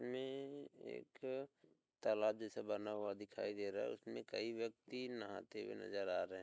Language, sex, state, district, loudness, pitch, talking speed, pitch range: Hindi, male, Uttar Pradesh, Hamirpur, -46 LUFS, 110 Hz, 175 wpm, 105-125 Hz